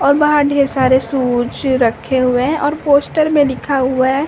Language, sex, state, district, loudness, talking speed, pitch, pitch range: Hindi, female, Uttar Pradesh, Varanasi, -14 LUFS, 210 wpm, 275 Hz, 260-290 Hz